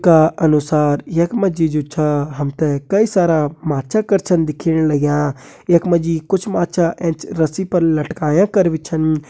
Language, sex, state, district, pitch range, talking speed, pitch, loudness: Kumaoni, male, Uttarakhand, Uttarkashi, 150-175 Hz, 160 wpm, 160 Hz, -17 LUFS